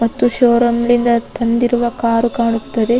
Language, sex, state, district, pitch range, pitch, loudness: Kannada, female, Karnataka, Raichur, 230-240 Hz, 235 Hz, -15 LUFS